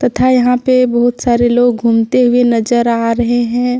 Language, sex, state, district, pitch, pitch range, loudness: Hindi, female, Jharkhand, Deoghar, 240 Hz, 235-245 Hz, -12 LUFS